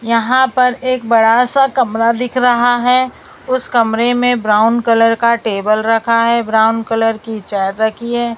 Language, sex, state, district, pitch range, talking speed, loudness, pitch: Hindi, female, Maharashtra, Mumbai Suburban, 225-245 Hz, 170 wpm, -13 LUFS, 235 Hz